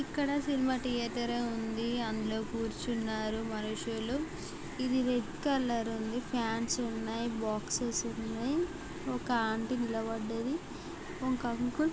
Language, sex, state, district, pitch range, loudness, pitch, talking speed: Telugu, female, Andhra Pradesh, Guntur, 225-255 Hz, -34 LUFS, 235 Hz, 105 wpm